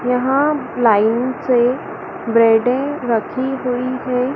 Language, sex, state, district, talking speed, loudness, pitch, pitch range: Hindi, female, Madhya Pradesh, Dhar, 95 wpm, -17 LUFS, 250 Hz, 235-260 Hz